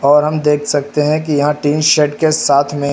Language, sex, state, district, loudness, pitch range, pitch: Hindi, male, Uttar Pradesh, Lucknow, -14 LUFS, 145-150 Hz, 150 Hz